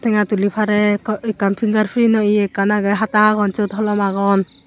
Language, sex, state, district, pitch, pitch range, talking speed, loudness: Chakma, female, Tripura, Unakoti, 210 Hz, 200-215 Hz, 180 wpm, -17 LUFS